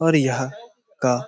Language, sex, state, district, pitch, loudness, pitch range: Hindi, male, Jharkhand, Sahebganj, 155 Hz, -23 LUFS, 130-215 Hz